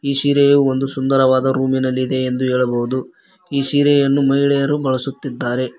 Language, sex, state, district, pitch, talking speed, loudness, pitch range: Kannada, male, Karnataka, Koppal, 135 Hz, 125 wpm, -16 LUFS, 130-140 Hz